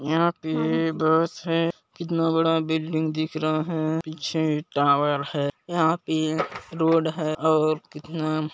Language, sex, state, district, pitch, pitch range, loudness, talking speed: Hindi, male, Chhattisgarh, Balrampur, 160 Hz, 155-165 Hz, -24 LUFS, 135 wpm